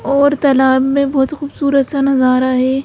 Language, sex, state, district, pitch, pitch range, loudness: Hindi, female, Madhya Pradesh, Bhopal, 275 Hz, 265-280 Hz, -14 LUFS